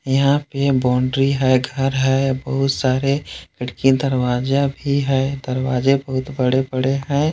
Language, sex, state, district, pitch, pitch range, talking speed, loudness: Hindi, male, Jharkhand, Palamu, 135 Hz, 130-140 Hz, 140 wpm, -19 LUFS